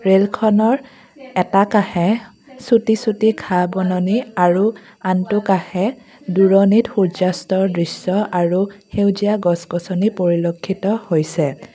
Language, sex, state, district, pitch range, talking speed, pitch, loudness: Assamese, female, Assam, Kamrup Metropolitan, 180-220 Hz, 100 wpm, 195 Hz, -17 LUFS